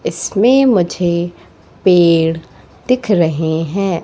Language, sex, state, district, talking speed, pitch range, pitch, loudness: Hindi, female, Madhya Pradesh, Katni, 90 wpm, 165-195 Hz, 175 Hz, -14 LUFS